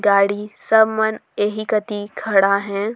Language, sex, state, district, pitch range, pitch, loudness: Surgujia, female, Chhattisgarh, Sarguja, 200-220 Hz, 210 Hz, -19 LUFS